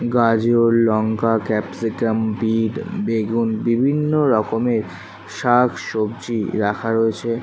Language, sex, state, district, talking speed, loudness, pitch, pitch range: Bengali, male, West Bengal, Kolkata, 80 wpm, -19 LUFS, 115 Hz, 110-115 Hz